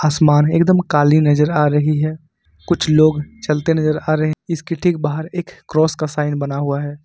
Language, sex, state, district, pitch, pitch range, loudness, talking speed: Hindi, male, Jharkhand, Ranchi, 155 Hz, 150-160 Hz, -17 LUFS, 205 wpm